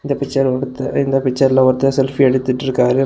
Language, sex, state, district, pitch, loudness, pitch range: Tamil, male, Tamil Nadu, Kanyakumari, 135 Hz, -16 LUFS, 130-135 Hz